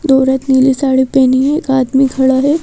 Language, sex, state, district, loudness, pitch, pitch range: Hindi, female, Madhya Pradesh, Bhopal, -12 LUFS, 265 Hz, 265-275 Hz